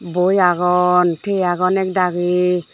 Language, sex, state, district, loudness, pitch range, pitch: Chakma, female, Tripura, Dhalai, -16 LUFS, 180-185 Hz, 180 Hz